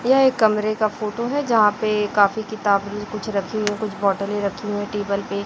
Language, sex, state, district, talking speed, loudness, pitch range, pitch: Hindi, female, Chhattisgarh, Raipur, 230 wpm, -21 LUFS, 205-215 Hz, 210 Hz